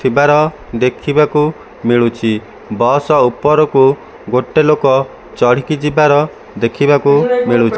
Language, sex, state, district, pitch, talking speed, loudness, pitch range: Odia, male, Odisha, Malkangiri, 140 Hz, 85 wpm, -13 LUFS, 125-150 Hz